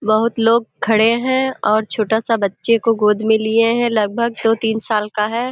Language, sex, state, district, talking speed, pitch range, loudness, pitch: Hindi, female, Uttar Pradesh, Deoria, 185 wpm, 215-230 Hz, -16 LUFS, 225 Hz